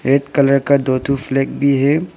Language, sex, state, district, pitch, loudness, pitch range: Hindi, male, Arunachal Pradesh, Lower Dibang Valley, 140 Hz, -16 LUFS, 135-140 Hz